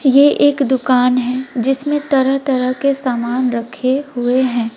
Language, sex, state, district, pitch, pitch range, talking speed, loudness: Hindi, female, West Bengal, Alipurduar, 260 Hz, 250-275 Hz, 150 wpm, -15 LUFS